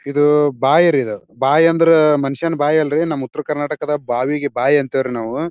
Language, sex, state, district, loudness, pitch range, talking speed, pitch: Kannada, male, Karnataka, Bijapur, -16 LUFS, 135-155 Hz, 175 wpm, 145 Hz